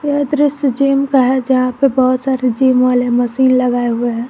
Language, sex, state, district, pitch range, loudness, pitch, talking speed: Hindi, female, Jharkhand, Garhwa, 250-275 Hz, -14 LUFS, 255 Hz, 210 wpm